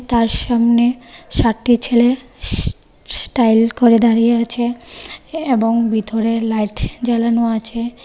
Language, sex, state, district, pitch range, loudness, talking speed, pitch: Bengali, female, Tripura, West Tripura, 230-240 Hz, -16 LUFS, 110 wpm, 235 Hz